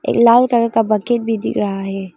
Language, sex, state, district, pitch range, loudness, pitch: Hindi, female, Arunachal Pradesh, Longding, 200-235 Hz, -15 LUFS, 225 Hz